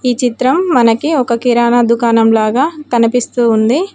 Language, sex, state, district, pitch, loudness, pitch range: Telugu, female, Telangana, Mahabubabad, 245 Hz, -12 LUFS, 235-260 Hz